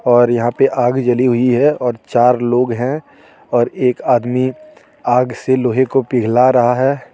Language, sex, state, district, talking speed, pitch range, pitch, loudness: Hindi, male, Jharkhand, Deoghar, 175 wpm, 120-130 Hz, 125 Hz, -15 LUFS